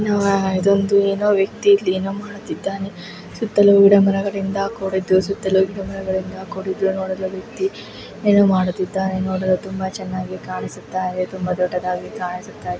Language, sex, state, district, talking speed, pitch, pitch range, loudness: Kannada, female, Karnataka, Bellary, 130 wpm, 190 Hz, 185-200 Hz, -19 LUFS